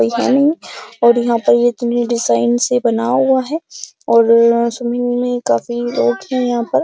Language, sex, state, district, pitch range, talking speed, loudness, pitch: Hindi, female, Uttar Pradesh, Jyotiba Phule Nagar, 230-245 Hz, 185 wpm, -15 LUFS, 240 Hz